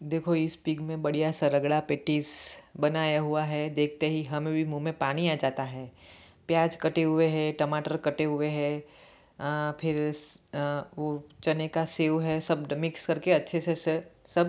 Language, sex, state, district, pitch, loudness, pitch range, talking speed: Hindi, female, Bihar, Gopalganj, 155 Hz, -29 LUFS, 150-160 Hz, 180 wpm